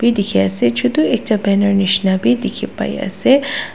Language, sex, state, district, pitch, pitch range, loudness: Nagamese, female, Nagaland, Dimapur, 205 Hz, 190-245 Hz, -15 LUFS